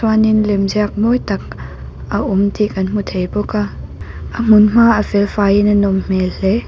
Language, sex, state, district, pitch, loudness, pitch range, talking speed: Mizo, female, Mizoram, Aizawl, 205 Hz, -15 LUFS, 195-215 Hz, 180 wpm